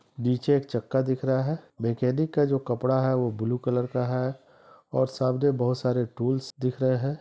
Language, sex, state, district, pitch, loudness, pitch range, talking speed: Hindi, male, Bihar, East Champaran, 130 Hz, -26 LUFS, 125-130 Hz, 200 wpm